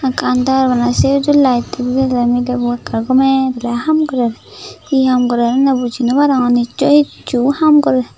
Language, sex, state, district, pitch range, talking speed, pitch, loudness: Chakma, female, Tripura, Unakoti, 245-275 Hz, 175 wpm, 255 Hz, -14 LUFS